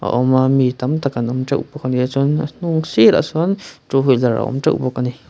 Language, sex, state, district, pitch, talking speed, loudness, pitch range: Mizo, male, Mizoram, Aizawl, 135 Hz, 295 wpm, -17 LUFS, 125-155 Hz